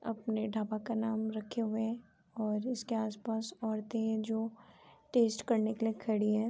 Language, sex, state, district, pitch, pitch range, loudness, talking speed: Hindi, female, Uttar Pradesh, Hamirpur, 220 Hz, 215-225 Hz, -35 LUFS, 175 wpm